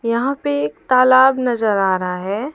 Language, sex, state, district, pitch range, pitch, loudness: Hindi, female, Madhya Pradesh, Umaria, 195-260 Hz, 235 Hz, -16 LUFS